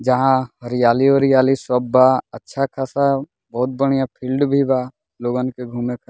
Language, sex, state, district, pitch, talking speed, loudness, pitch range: Bhojpuri, male, Bihar, Muzaffarpur, 130 Hz, 150 wpm, -18 LUFS, 125-135 Hz